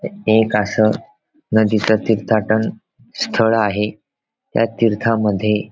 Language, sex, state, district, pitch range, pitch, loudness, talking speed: Marathi, male, Maharashtra, Pune, 105-115 Hz, 110 Hz, -17 LUFS, 115 wpm